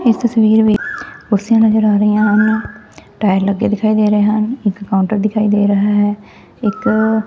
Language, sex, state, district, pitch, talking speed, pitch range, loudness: Punjabi, female, Punjab, Fazilka, 210 Hz, 165 wpm, 205-220 Hz, -14 LUFS